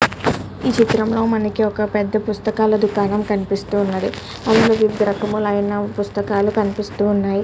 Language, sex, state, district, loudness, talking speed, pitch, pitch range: Telugu, male, Andhra Pradesh, Guntur, -19 LUFS, 55 wpm, 210 Hz, 205-215 Hz